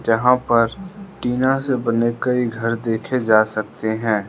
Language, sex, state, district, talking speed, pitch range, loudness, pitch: Hindi, male, Arunachal Pradesh, Lower Dibang Valley, 155 wpm, 115-125 Hz, -19 LUFS, 115 Hz